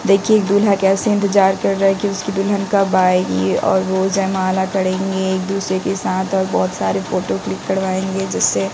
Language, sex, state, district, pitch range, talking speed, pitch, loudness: Hindi, female, Bihar, West Champaran, 190-195 Hz, 170 wpm, 190 Hz, -17 LUFS